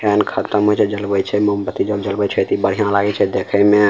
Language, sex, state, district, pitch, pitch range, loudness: Maithili, male, Bihar, Samastipur, 105 Hz, 100-105 Hz, -17 LUFS